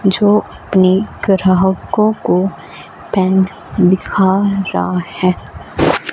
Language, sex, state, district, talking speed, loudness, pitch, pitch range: Hindi, female, Punjab, Fazilka, 80 wpm, -14 LUFS, 190 Hz, 185-195 Hz